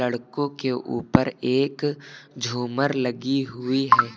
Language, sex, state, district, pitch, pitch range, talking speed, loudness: Hindi, male, Uttar Pradesh, Lucknow, 130 Hz, 125-140 Hz, 115 wpm, -24 LUFS